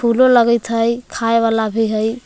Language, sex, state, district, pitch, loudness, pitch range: Magahi, female, Jharkhand, Palamu, 230 Hz, -15 LUFS, 225-235 Hz